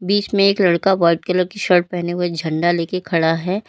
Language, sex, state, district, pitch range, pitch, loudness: Hindi, female, Uttar Pradesh, Lalitpur, 170-190 Hz, 180 Hz, -17 LUFS